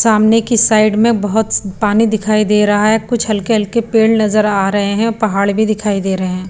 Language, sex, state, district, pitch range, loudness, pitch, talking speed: Hindi, female, Punjab, Pathankot, 205-225 Hz, -13 LUFS, 215 Hz, 220 wpm